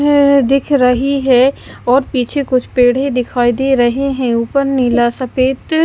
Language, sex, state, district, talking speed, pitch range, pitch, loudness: Hindi, female, Odisha, Malkangiri, 155 wpm, 250-275 Hz, 260 Hz, -13 LUFS